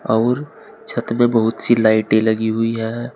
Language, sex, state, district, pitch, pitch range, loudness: Hindi, male, Uttar Pradesh, Saharanpur, 115 Hz, 110-120 Hz, -17 LUFS